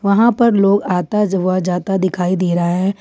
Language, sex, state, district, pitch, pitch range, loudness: Hindi, female, Jharkhand, Ranchi, 190 Hz, 180-200 Hz, -16 LUFS